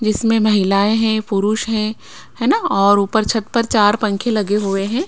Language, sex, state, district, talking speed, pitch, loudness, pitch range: Hindi, female, Bihar, Patna, 190 wpm, 215 Hz, -16 LUFS, 200-220 Hz